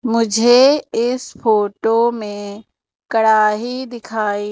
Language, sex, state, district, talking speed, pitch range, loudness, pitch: Hindi, female, Madhya Pradesh, Umaria, 80 wpm, 215-240 Hz, -16 LUFS, 225 Hz